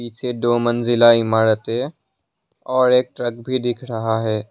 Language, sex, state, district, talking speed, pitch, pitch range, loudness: Hindi, male, Assam, Sonitpur, 160 wpm, 120 Hz, 110-125 Hz, -18 LUFS